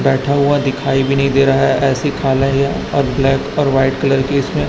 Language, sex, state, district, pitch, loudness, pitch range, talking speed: Hindi, male, Chhattisgarh, Raipur, 135 Hz, -15 LUFS, 135-140 Hz, 230 wpm